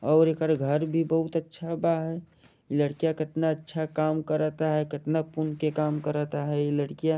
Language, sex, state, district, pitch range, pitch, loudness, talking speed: Bhojpuri, male, Jharkhand, Sahebganj, 150-160 Hz, 155 Hz, -27 LUFS, 175 wpm